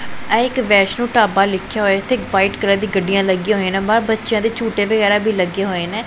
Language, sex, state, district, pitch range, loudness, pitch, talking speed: Punjabi, female, Punjab, Pathankot, 195-225 Hz, -16 LUFS, 205 Hz, 235 wpm